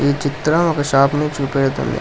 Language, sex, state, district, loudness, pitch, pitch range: Telugu, male, Telangana, Hyderabad, -17 LUFS, 145 Hz, 140-150 Hz